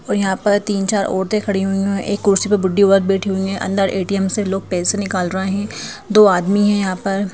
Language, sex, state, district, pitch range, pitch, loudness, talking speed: Hindi, female, Madhya Pradesh, Bhopal, 190-205 Hz, 195 Hz, -17 LUFS, 230 wpm